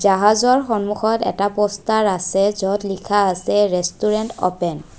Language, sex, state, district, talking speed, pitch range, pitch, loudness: Assamese, female, Assam, Kamrup Metropolitan, 130 wpm, 190-215 Hz, 205 Hz, -18 LUFS